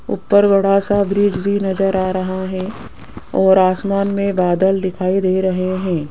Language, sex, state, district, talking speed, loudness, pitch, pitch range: Hindi, female, Rajasthan, Jaipur, 165 wpm, -16 LUFS, 190 Hz, 185-200 Hz